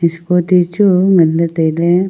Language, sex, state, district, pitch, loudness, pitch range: Wancho, female, Arunachal Pradesh, Longding, 175 Hz, -12 LUFS, 170-180 Hz